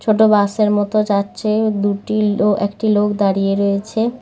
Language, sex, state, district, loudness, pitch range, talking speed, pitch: Bengali, female, West Bengal, Malda, -16 LUFS, 200-215 Hz, 155 wpm, 210 Hz